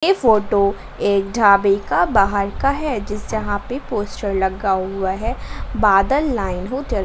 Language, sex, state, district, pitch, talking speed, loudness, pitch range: Hindi, female, Jharkhand, Garhwa, 205 Hz, 160 wpm, -19 LUFS, 195-235 Hz